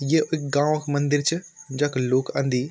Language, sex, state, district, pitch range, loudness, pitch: Garhwali, male, Uttarakhand, Tehri Garhwal, 135-155 Hz, -23 LUFS, 145 Hz